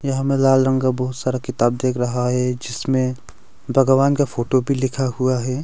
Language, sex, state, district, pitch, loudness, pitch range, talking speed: Hindi, male, Arunachal Pradesh, Longding, 130 Hz, -19 LUFS, 125-135 Hz, 200 wpm